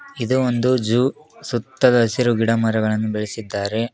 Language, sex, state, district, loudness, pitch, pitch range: Kannada, male, Karnataka, Koppal, -20 LUFS, 120 Hz, 110-130 Hz